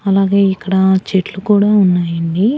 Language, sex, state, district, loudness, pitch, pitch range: Telugu, female, Andhra Pradesh, Annamaya, -13 LUFS, 190 Hz, 185-200 Hz